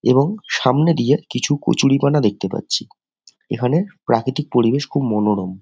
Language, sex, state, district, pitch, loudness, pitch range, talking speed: Bengali, male, West Bengal, Jhargram, 135 Hz, -18 LUFS, 120-150 Hz, 130 wpm